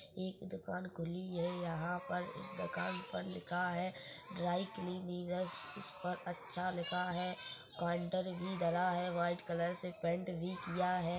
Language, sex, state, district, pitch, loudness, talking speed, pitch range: Hindi, male, Chhattisgarh, Korba, 180 Hz, -40 LUFS, 150 wpm, 175-180 Hz